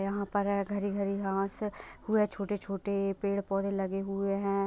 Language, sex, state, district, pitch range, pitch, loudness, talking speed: Hindi, female, Jharkhand, Sahebganj, 195-200 Hz, 200 Hz, -32 LUFS, 220 wpm